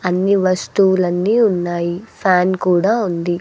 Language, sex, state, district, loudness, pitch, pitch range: Telugu, female, Andhra Pradesh, Sri Satya Sai, -16 LUFS, 185 Hz, 175-195 Hz